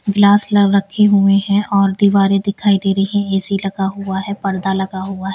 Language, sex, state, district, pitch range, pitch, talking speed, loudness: Hindi, female, Bihar, Patna, 195-200 Hz, 195 Hz, 200 wpm, -15 LUFS